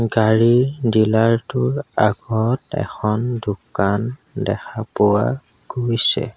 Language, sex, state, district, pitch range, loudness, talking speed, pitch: Assamese, male, Assam, Sonitpur, 110-125 Hz, -19 LUFS, 85 wpm, 115 Hz